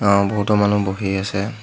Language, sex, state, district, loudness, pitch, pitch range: Assamese, male, Assam, Hailakandi, -19 LUFS, 100 Hz, 100-105 Hz